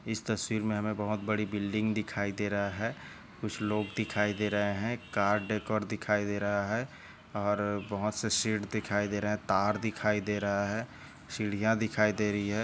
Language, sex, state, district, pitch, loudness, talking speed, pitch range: Hindi, male, Maharashtra, Chandrapur, 105 Hz, -32 LUFS, 185 wpm, 105-110 Hz